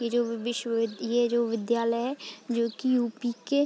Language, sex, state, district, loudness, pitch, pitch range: Hindi, female, Uttar Pradesh, Deoria, -28 LUFS, 235 Hz, 230-240 Hz